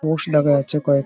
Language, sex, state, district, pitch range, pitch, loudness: Bengali, male, West Bengal, Paschim Medinipur, 140-155 Hz, 150 Hz, -18 LUFS